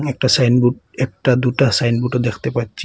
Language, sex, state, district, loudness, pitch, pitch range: Bengali, male, Assam, Hailakandi, -17 LUFS, 125 Hz, 120-130 Hz